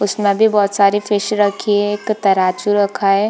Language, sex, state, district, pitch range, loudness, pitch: Hindi, female, Bihar, Purnia, 200-210 Hz, -15 LUFS, 205 Hz